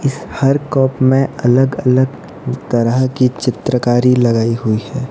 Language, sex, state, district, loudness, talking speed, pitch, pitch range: Hindi, male, Odisha, Nuapada, -15 LUFS, 140 wpm, 130 Hz, 120-135 Hz